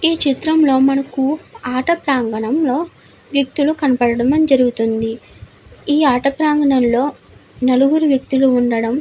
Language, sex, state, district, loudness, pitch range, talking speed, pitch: Telugu, female, Andhra Pradesh, Anantapur, -16 LUFS, 250-295 Hz, 95 wpm, 270 Hz